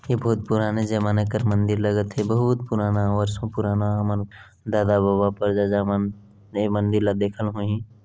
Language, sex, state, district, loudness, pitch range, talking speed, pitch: Hindi, male, Chhattisgarh, Balrampur, -23 LUFS, 100-110 Hz, 170 wpm, 105 Hz